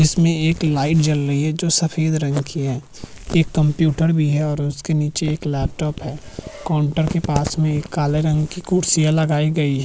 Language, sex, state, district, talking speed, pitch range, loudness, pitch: Hindi, male, Uttarakhand, Tehri Garhwal, 205 wpm, 145-160 Hz, -19 LUFS, 155 Hz